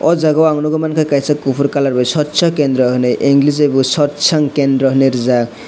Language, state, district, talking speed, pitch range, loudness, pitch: Kokborok, Tripura, West Tripura, 210 wpm, 135-150 Hz, -13 LUFS, 145 Hz